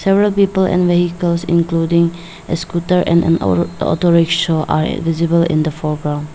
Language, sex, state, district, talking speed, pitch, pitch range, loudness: English, female, Arunachal Pradesh, Lower Dibang Valley, 125 wpm, 170 Hz, 160-175 Hz, -15 LUFS